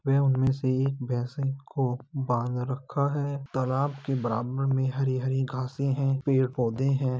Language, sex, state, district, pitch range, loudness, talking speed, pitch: Hindi, male, Uttar Pradesh, Jalaun, 130-135 Hz, -28 LUFS, 150 wpm, 135 Hz